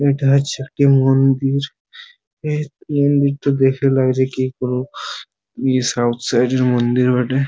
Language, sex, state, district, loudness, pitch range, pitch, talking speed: Bengali, male, West Bengal, Purulia, -17 LUFS, 130-140 Hz, 135 Hz, 135 wpm